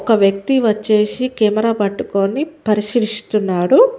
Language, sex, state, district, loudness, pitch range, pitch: Telugu, female, Telangana, Mahabubabad, -16 LUFS, 205-245 Hz, 215 Hz